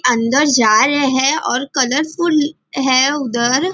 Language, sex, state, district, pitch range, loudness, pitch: Hindi, female, Maharashtra, Nagpur, 255-295 Hz, -15 LUFS, 270 Hz